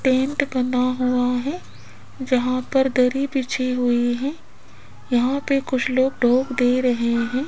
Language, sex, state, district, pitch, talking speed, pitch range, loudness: Hindi, female, Rajasthan, Jaipur, 255 Hz, 145 wpm, 250-270 Hz, -21 LUFS